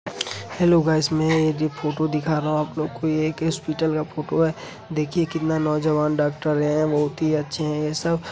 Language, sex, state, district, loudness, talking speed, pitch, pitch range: Hindi, male, Uttar Pradesh, Jalaun, -22 LUFS, 210 wpm, 155 Hz, 150-160 Hz